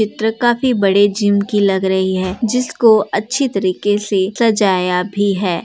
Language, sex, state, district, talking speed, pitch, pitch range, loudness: Hindi, female, Uttar Pradesh, Jalaun, 160 wpm, 205 Hz, 190-220 Hz, -15 LUFS